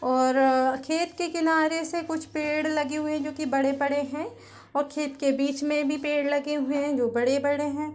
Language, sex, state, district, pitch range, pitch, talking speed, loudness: Hindi, female, Chhattisgarh, Raigarh, 275-305 Hz, 290 Hz, 190 wpm, -26 LUFS